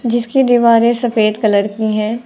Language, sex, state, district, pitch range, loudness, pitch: Hindi, female, Uttar Pradesh, Lucknow, 215-240 Hz, -13 LUFS, 230 Hz